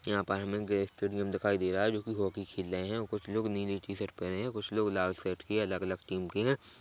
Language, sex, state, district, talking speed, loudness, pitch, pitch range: Hindi, male, Chhattisgarh, Bilaspur, 280 wpm, -34 LUFS, 100 Hz, 95-105 Hz